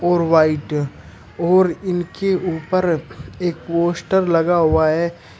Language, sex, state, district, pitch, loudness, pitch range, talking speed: Hindi, male, Uttar Pradesh, Shamli, 170 Hz, -18 LUFS, 155-175 Hz, 110 wpm